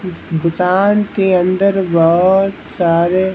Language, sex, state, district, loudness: Hindi, male, Bihar, Patna, -13 LUFS